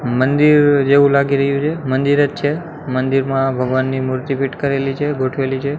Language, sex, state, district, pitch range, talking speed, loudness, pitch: Gujarati, male, Gujarat, Gandhinagar, 130-145 Hz, 155 wpm, -16 LUFS, 140 Hz